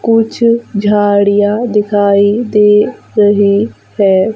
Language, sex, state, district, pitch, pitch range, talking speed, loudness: Hindi, female, Madhya Pradesh, Umaria, 210 Hz, 205-220 Hz, 80 wpm, -11 LUFS